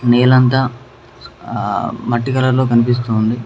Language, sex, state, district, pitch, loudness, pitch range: Telugu, male, Telangana, Mahabubabad, 120 Hz, -15 LUFS, 120-130 Hz